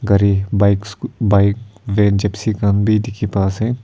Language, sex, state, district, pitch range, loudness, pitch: Nagamese, male, Nagaland, Kohima, 100-110 Hz, -16 LUFS, 105 Hz